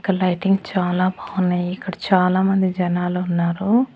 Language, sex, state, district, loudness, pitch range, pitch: Telugu, female, Andhra Pradesh, Annamaya, -20 LUFS, 180-195 Hz, 185 Hz